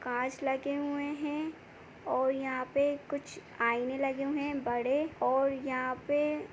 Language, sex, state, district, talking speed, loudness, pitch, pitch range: Hindi, female, Chhattisgarh, Jashpur, 145 wpm, -32 LUFS, 275 Hz, 260-290 Hz